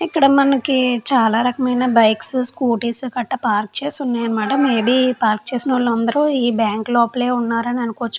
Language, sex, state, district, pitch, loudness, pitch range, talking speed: Telugu, female, Andhra Pradesh, Chittoor, 245 Hz, -17 LUFS, 230-260 Hz, 160 wpm